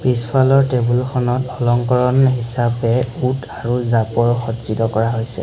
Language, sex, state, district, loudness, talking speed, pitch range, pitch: Assamese, male, Assam, Hailakandi, -17 LUFS, 100 wpm, 115-125 Hz, 120 Hz